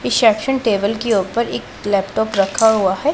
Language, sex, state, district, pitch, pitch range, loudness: Hindi, female, Punjab, Pathankot, 215 Hz, 195-230 Hz, -17 LUFS